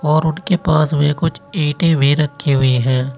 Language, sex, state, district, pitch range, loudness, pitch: Hindi, male, Uttar Pradesh, Saharanpur, 140-160 Hz, -16 LUFS, 150 Hz